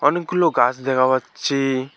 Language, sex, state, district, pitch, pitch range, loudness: Bengali, male, West Bengal, Alipurduar, 135 Hz, 130-150 Hz, -19 LUFS